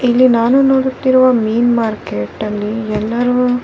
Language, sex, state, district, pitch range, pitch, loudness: Kannada, female, Karnataka, Bellary, 220-255 Hz, 240 Hz, -14 LUFS